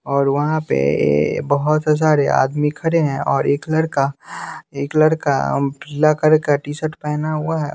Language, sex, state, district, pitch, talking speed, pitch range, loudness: Hindi, male, Bihar, West Champaran, 150 Hz, 155 wpm, 140-155 Hz, -18 LUFS